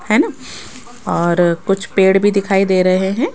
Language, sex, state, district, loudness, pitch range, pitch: Hindi, female, Rajasthan, Jaipur, -15 LUFS, 185-200 Hz, 195 Hz